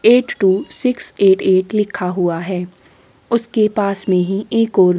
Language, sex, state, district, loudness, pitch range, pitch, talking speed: Hindi, female, Chhattisgarh, Korba, -16 LUFS, 185-225 Hz, 195 Hz, 155 wpm